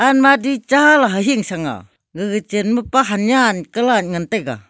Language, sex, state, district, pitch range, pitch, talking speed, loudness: Wancho, female, Arunachal Pradesh, Longding, 195-265 Hz, 225 Hz, 155 wpm, -16 LUFS